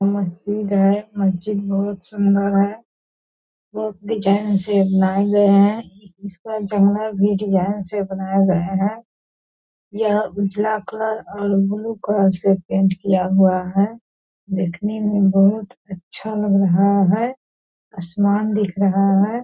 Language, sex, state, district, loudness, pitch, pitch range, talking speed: Hindi, female, Bihar, Purnia, -19 LUFS, 200 Hz, 195-210 Hz, 135 wpm